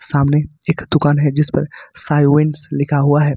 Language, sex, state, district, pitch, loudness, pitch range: Hindi, male, Jharkhand, Ranchi, 150 Hz, -16 LUFS, 145-150 Hz